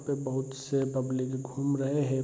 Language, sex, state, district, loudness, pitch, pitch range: Hindi, male, Bihar, Saharsa, -31 LUFS, 135 Hz, 130-140 Hz